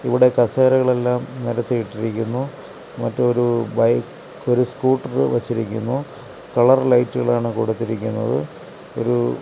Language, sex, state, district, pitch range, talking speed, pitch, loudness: Malayalam, male, Kerala, Kasaragod, 115-125 Hz, 90 wpm, 120 Hz, -20 LUFS